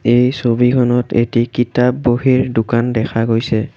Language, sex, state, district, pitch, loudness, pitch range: Assamese, male, Assam, Kamrup Metropolitan, 120 Hz, -15 LUFS, 115-125 Hz